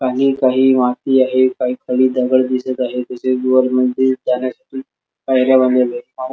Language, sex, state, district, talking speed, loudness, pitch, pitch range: Marathi, male, Maharashtra, Sindhudurg, 150 wpm, -15 LUFS, 130 Hz, 125-130 Hz